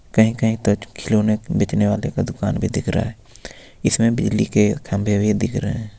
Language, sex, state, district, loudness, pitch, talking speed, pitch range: Hindi, male, Jharkhand, Ranchi, -20 LUFS, 110 Hz, 200 wpm, 105-115 Hz